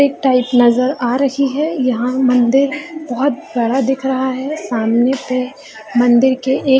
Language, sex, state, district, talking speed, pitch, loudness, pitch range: Hindi, female, Bihar, Jamui, 170 wpm, 260 Hz, -15 LUFS, 245-275 Hz